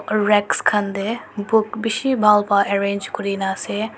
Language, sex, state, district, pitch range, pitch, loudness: Nagamese, male, Nagaland, Dimapur, 200-220 Hz, 210 Hz, -19 LUFS